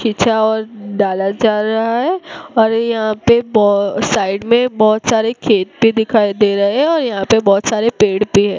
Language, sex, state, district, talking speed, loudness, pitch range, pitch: Hindi, female, Gujarat, Gandhinagar, 190 wpm, -14 LUFS, 205-230 Hz, 220 Hz